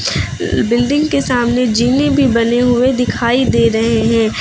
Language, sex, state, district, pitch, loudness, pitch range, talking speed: Hindi, female, Uttar Pradesh, Lucknow, 240 Hz, -13 LUFS, 230-255 Hz, 150 wpm